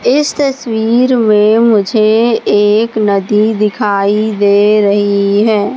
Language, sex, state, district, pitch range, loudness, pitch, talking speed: Hindi, female, Madhya Pradesh, Katni, 205-230 Hz, -11 LUFS, 215 Hz, 105 wpm